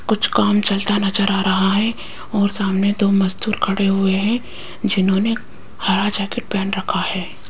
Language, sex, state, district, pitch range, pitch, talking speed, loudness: Hindi, female, Rajasthan, Jaipur, 195-210 Hz, 200 Hz, 160 wpm, -19 LUFS